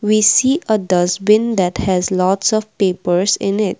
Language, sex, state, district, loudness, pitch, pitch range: English, female, Assam, Kamrup Metropolitan, -15 LUFS, 200 Hz, 185-215 Hz